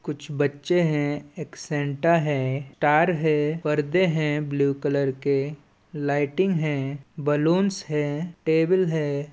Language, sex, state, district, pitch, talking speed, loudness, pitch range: Chhattisgarhi, male, Chhattisgarh, Balrampur, 150 Hz, 120 wpm, -24 LUFS, 145-160 Hz